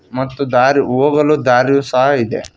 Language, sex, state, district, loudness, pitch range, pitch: Kannada, male, Karnataka, Koppal, -13 LUFS, 125-140 Hz, 135 Hz